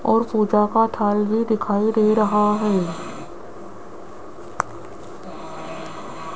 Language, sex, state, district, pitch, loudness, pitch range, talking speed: Hindi, female, Rajasthan, Jaipur, 215 Hz, -20 LUFS, 210-220 Hz, 85 wpm